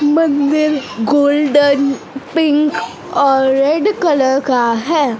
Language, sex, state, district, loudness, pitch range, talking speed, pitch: Hindi, female, Madhya Pradesh, Dhar, -14 LUFS, 270-300 Hz, 90 wpm, 285 Hz